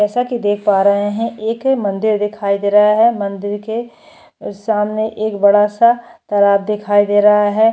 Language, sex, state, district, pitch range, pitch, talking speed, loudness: Hindi, female, Uttar Pradesh, Jyotiba Phule Nagar, 205-225 Hz, 210 Hz, 180 wpm, -15 LUFS